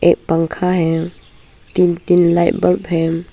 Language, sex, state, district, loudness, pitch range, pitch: Hindi, female, Arunachal Pradesh, Papum Pare, -16 LUFS, 165-175 Hz, 170 Hz